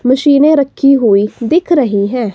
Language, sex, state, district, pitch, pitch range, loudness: Hindi, female, Himachal Pradesh, Shimla, 260 Hz, 220-290 Hz, -11 LUFS